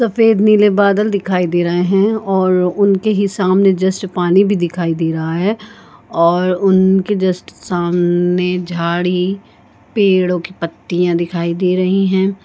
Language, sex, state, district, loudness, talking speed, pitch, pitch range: Hindi, female, Goa, North and South Goa, -15 LUFS, 145 wpm, 185 Hz, 175-200 Hz